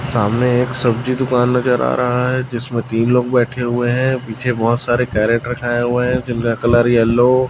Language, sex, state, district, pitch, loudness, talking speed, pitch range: Hindi, male, Chhattisgarh, Raipur, 120 Hz, -16 LUFS, 200 wpm, 120-125 Hz